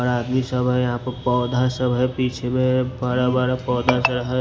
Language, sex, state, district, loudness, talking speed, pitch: Hindi, male, Maharashtra, Washim, -21 LUFS, 230 wpm, 125 Hz